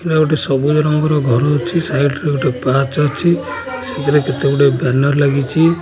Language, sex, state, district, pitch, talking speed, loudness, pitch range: Odia, male, Odisha, Khordha, 145 Hz, 155 wpm, -15 LUFS, 135-155 Hz